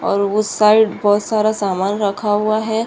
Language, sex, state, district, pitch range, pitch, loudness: Hindi, female, Bihar, Saharsa, 205-215 Hz, 210 Hz, -16 LUFS